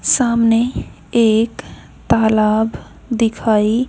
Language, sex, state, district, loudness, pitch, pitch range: Hindi, female, Haryana, Jhajjar, -16 LUFS, 230 Hz, 220-235 Hz